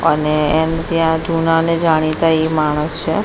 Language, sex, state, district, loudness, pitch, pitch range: Gujarati, female, Gujarat, Gandhinagar, -15 LUFS, 160 Hz, 155-165 Hz